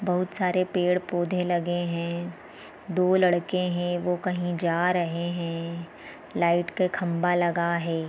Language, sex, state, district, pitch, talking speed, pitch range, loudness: Hindi, female, Bihar, East Champaran, 175 Hz, 135 wpm, 170-180 Hz, -26 LUFS